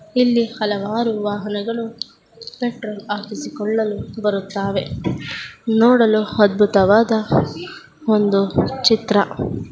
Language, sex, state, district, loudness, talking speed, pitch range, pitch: Kannada, female, Karnataka, Chamarajanagar, -19 LUFS, 135 wpm, 205-230 Hz, 215 Hz